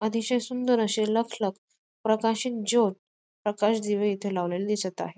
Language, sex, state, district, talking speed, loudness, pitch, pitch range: Marathi, female, Maharashtra, Aurangabad, 140 wpm, -27 LUFS, 215 Hz, 205-230 Hz